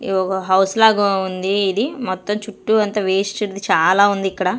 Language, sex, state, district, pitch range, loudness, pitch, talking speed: Telugu, female, Andhra Pradesh, Sri Satya Sai, 190-210 Hz, -17 LUFS, 200 Hz, 155 wpm